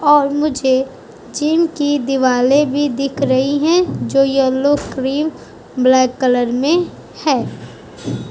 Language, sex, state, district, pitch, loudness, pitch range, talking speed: Hindi, female, Uttar Pradesh, Budaun, 275 Hz, -16 LUFS, 260-295 Hz, 115 wpm